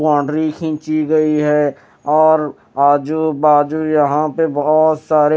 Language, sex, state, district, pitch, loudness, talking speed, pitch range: Hindi, male, Chandigarh, Chandigarh, 155 Hz, -15 LUFS, 135 wpm, 150-155 Hz